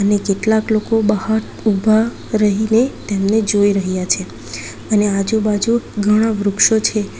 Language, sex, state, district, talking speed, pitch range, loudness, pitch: Gujarati, female, Gujarat, Valsad, 115 wpm, 200-220 Hz, -16 LUFS, 210 Hz